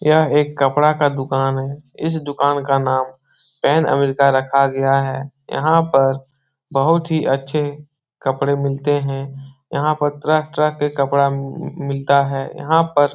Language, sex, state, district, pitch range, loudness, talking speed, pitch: Hindi, male, Bihar, Jahanabad, 135-150 Hz, -18 LUFS, 155 wpm, 140 Hz